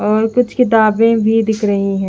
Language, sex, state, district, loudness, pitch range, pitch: Hindi, female, Haryana, Charkhi Dadri, -13 LUFS, 210-230 Hz, 220 Hz